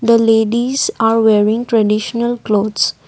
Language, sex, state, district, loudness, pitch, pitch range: English, female, Assam, Kamrup Metropolitan, -14 LUFS, 225 Hz, 215-235 Hz